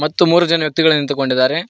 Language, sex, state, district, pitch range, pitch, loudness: Kannada, male, Karnataka, Koppal, 145-170 Hz, 155 Hz, -15 LUFS